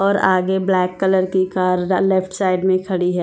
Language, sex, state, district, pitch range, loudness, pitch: Hindi, female, Himachal Pradesh, Shimla, 185-190 Hz, -18 LUFS, 185 Hz